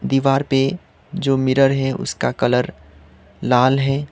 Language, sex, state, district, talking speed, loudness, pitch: Hindi, male, Sikkim, Gangtok, 130 wpm, -18 LUFS, 135 Hz